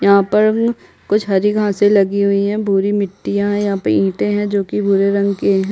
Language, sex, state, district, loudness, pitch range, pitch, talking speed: Hindi, female, Chhattisgarh, Bastar, -16 LUFS, 195-205 Hz, 200 Hz, 220 wpm